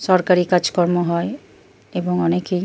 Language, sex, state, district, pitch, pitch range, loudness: Bengali, male, Jharkhand, Jamtara, 180 Hz, 175-180 Hz, -19 LUFS